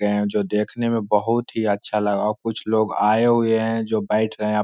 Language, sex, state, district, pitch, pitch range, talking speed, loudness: Magahi, male, Bihar, Lakhisarai, 110 Hz, 105-115 Hz, 205 wpm, -21 LUFS